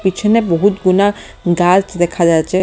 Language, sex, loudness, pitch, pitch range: Bengali, female, -14 LUFS, 185 Hz, 175-200 Hz